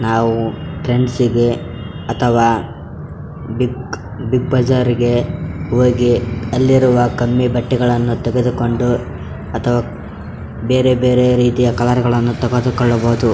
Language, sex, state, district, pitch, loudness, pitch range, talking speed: Kannada, male, Karnataka, Raichur, 120 Hz, -15 LUFS, 115-125 Hz, 95 wpm